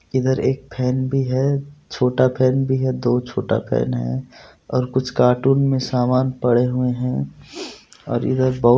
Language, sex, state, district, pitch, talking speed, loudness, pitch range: Hindi, male, Bihar, Supaul, 130 Hz, 165 wpm, -20 LUFS, 125-130 Hz